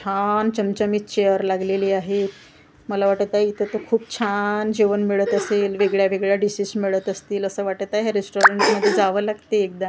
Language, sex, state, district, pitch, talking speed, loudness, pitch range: Marathi, female, Maharashtra, Gondia, 200 Hz, 165 wpm, -21 LUFS, 195-210 Hz